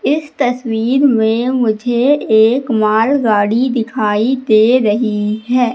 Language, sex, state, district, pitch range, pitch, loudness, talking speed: Hindi, female, Madhya Pradesh, Katni, 220-255 Hz, 235 Hz, -13 LUFS, 105 wpm